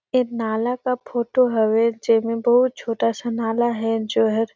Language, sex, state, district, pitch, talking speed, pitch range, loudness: Surgujia, female, Chhattisgarh, Sarguja, 230 Hz, 170 wpm, 225-240 Hz, -21 LUFS